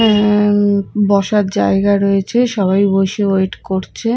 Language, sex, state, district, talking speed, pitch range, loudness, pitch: Bengali, female, Odisha, Khordha, 115 wpm, 195-210 Hz, -14 LUFS, 200 Hz